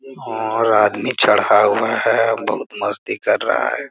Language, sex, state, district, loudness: Hindi, male, Bihar, Jamui, -17 LUFS